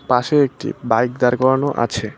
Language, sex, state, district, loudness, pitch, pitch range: Bengali, male, West Bengal, Cooch Behar, -18 LUFS, 125 Hz, 120-130 Hz